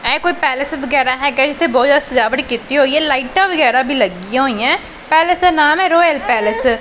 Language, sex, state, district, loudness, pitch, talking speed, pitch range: Punjabi, female, Punjab, Pathankot, -14 LUFS, 280 Hz, 210 wpm, 255-315 Hz